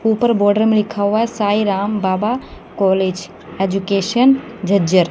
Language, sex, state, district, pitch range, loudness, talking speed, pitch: Hindi, female, Haryana, Jhajjar, 195-220 Hz, -16 LUFS, 140 wpm, 205 Hz